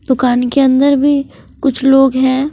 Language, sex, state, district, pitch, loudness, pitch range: Hindi, female, Punjab, Fazilka, 270 Hz, -12 LUFS, 260-275 Hz